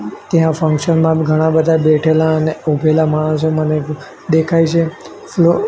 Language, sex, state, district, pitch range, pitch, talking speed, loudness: Gujarati, male, Gujarat, Gandhinagar, 155-165 Hz, 160 Hz, 125 wpm, -14 LUFS